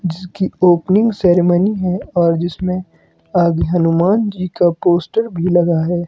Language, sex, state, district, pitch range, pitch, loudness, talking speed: Hindi, male, Himachal Pradesh, Shimla, 175-185 Hz, 175 Hz, -15 LUFS, 140 wpm